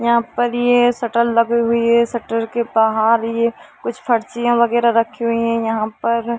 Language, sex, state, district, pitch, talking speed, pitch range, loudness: Hindi, female, Jharkhand, Sahebganj, 235 Hz, 195 wpm, 230-235 Hz, -17 LUFS